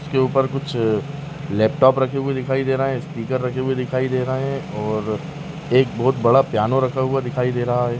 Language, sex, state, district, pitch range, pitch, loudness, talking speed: Kumaoni, male, Uttarakhand, Tehri Garhwal, 125-135 Hz, 130 Hz, -20 LUFS, 205 wpm